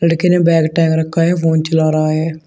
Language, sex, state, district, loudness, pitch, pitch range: Hindi, male, Uttar Pradesh, Shamli, -14 LUFS, 160 Hz, 160-165 Hz